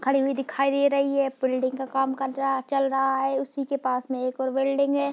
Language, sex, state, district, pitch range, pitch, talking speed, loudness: Hindi, female, Bihar, Darbhanga, 265-275 Hz, 270 Hz, 235 wpm, -25 LUFS